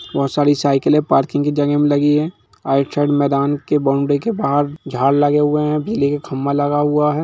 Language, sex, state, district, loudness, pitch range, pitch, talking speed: Hindi, male, Bihar, Gaya, -17 LUFS, 140-150 Hz, 145 Hz, 215 wpm